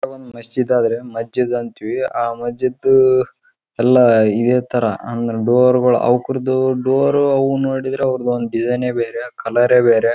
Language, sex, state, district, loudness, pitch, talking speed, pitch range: Kannada, male, Karnataka, Raichur, -16 LUFS, 125 Hz, 140 wpm, 120-130 Hz